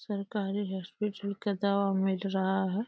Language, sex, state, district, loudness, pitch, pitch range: Hindi, female, Uttar Pradesh, Deoria, -31 LUFS, 200 Hz, 190-205 Hz